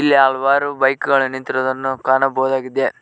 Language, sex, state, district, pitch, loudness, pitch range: Kannada, male, Karnataka, Koppal, 135 Hz, -17 LUFS, 130-135 Hz